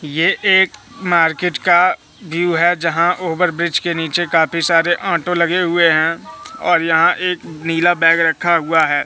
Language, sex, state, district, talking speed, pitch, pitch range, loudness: Hindi, male, Madhya Pradesh, Katni, 160 wpm, 170 Hz, 165-180 Hz, -15 LUFS